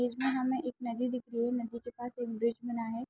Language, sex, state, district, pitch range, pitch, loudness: Hindi, female, Uttar Pradesh, Deoria, 235-250 Hz, 240 Hz, -35 LUFS